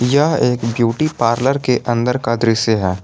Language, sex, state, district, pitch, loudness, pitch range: Hindi, male, Jharkhand, Garhwa, 120 Hz, -16 LUFS, 115-130 Hz